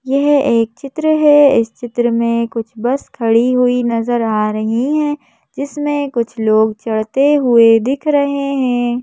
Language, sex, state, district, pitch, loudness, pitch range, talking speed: Hindi, female, Madhya Pradesh, Bhopal, 245 Hz, -14 LUFS, 230-280 Hz, 155 wpm